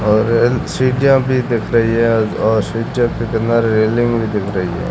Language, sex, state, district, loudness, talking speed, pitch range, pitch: Hindi, male, Rajasthan, Bikaner, -15 LUFS, 195 wpm, 110-120 Hz, 115 Hz